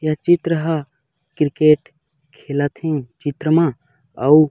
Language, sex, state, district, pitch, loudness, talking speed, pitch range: Chhattisgarhi, male, Chhattisgarh, Raigarh, 150 Hz, -18 LUFS, 120 wpm, 145-160 Hz